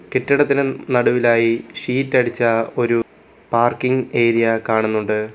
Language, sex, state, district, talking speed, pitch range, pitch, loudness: Malayalam, male, Kerala, Kollam, 90 wpm, 115-130 Hz, 120 Hz, -18 LUFS